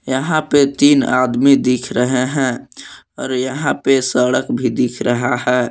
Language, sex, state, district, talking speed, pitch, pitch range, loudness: Hindi, male, Jharkhand, Palamu, 160 wpm, 130 Hz, 125-140 Hz, -15 LUFS